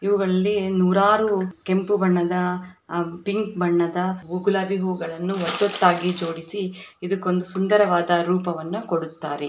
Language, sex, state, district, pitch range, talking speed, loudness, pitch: Kannada, female, Karnataka, Shimoga, 175-195 Hz, 90 wpm, -22 LUFS, 185 Hz